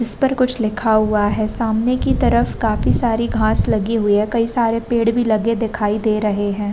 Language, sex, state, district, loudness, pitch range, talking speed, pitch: Hindi, female, Uttar Pradesh, Varanasi, -17 LUFS, 210-230 Hz, 205 wpm, 220 Hz